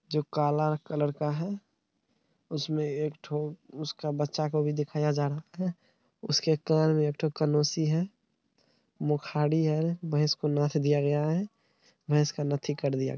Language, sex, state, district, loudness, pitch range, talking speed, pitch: Hindi, male, Bihar, Araria, -29 LUFS, 150-155 Hz, 160 wpm, 150 Hz